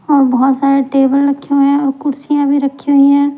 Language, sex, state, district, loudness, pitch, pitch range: Hindi, male, Delhi, New Delhi, -12 LUFS, 280 Hz, 275-285 Hz